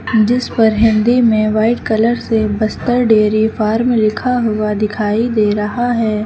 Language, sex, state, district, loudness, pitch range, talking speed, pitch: Hindi, female, Uttar Pradesh, Lucknow, -14 LUFS, 215-235 Hz, 155 wpm, 220 Hz